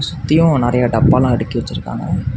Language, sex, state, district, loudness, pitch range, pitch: Tamil, male, Tamil Nadu, Namakkal, -15 LUFS, 120-145 Hz, 125 Hz